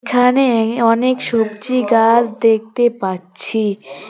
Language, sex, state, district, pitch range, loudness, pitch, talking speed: Bengali, female, West Bengal, Cooch Behar, 215-245 Hz, -15 LUFS, 230 Hz, 90 wpm